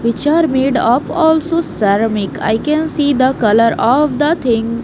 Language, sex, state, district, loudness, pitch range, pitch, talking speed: English, female, Haryana, Jhajjar, -14 LUFS, 230-305 Hz, 260 Hz, 175 wpm